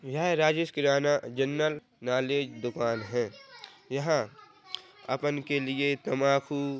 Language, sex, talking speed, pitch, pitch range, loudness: Hindi, male, 105 wpm, 140 Hz, 135-150 Hz, -29 LUFS